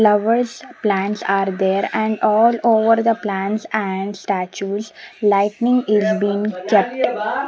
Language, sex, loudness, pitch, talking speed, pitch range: English, female, -18 LUFS, 210 Hz, 120 wpm, 195-225 Hz